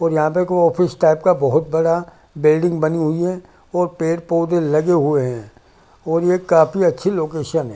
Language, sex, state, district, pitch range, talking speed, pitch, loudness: Hindi, male, Delhi, New Delhi, 155-175 Hz, 200 wpm, 165 Hz, -17 LUFS